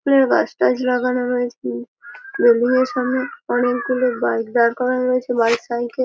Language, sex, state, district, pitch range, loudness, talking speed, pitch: Bengali, female, West Bengal, Malda, 235-255 Hz, -19 LUFS, 150 wpm, 245 Hz